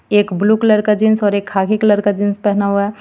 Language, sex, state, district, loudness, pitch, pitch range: Hindi, female, Jharkhand, Ranchi, -14 LUFS, 205 Hz, 200-215 Hz